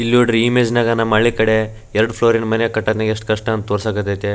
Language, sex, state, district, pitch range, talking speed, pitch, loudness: Kannada, male, Karnataka, Raichur, 110-115 Hz, 205 wpm, 110 Hz, -17 LUFS